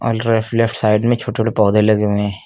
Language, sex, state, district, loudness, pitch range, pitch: Hindi, male, Uttar Pradesh, Lucknow, -16 LUFS, 105-115 Hz, 110 Hz